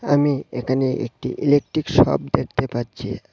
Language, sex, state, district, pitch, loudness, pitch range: Bengali, male, Tripura, West Tripura, 135 Hz, -21 LUFS, 130-145 Hz